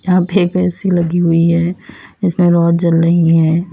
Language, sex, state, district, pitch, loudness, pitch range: Hindi, female, Uttar Pradesh, Lalitpur, 175 Hz, -13 LUFS, 170-180 Hz